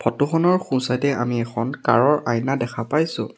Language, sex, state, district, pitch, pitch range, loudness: Assamese, male, Assam, Sonitpur, 130 Hz, 120-145 Hz, -21 LUFS